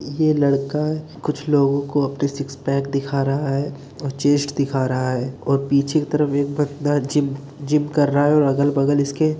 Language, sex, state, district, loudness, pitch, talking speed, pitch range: Hindi, male, Uttar Pradesh, Etah, -20 LUFS, 140 Hz, 200 wpm, 140-145 Hz